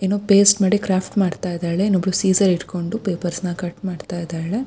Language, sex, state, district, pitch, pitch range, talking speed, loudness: Kannada, female, Karnataka, Shimoga, 185 Hz, 175-200 Hz, 180 wpm, -19 LUFS